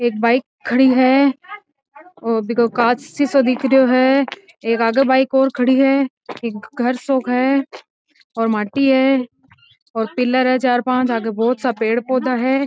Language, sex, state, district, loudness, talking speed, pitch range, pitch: Marwari, female, Rajasthan, Nagaur, -17 LUFS, 160 wpm, 235-270 Hz, 255 Hz